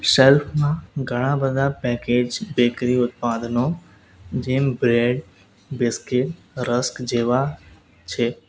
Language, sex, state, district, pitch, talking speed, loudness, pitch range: Gujarati, male, Gujarat, Valsad, 125 Hz, 85 wpm, -21 LUFS, 120-135 Hz